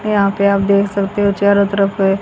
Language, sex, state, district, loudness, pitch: Hindi, female, Haryana, Jhajjar, -14 LUFS, 200 Hz